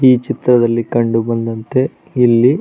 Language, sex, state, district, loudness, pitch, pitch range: Kannada, male, Karnataka, Raichur, -15 LUFS, 120 Hz, 115-130 Hz